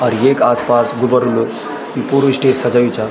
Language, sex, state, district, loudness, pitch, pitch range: Garhwali, male, Uttarakhand, Tehri Garhwal, -14 LUFS, 120 Hz, 120-130 Hz